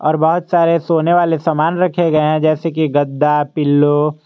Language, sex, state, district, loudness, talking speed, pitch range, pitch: Hindi, male, Jharkhand, Garhwa, -14 LUFS, 185 wpm, 150-165 Hz, 155 Hz